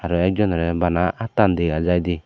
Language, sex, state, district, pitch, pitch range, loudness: Chakma, male, Tripura, Dhalai, 90 Hz, 85-95 Hz, -20 LUFS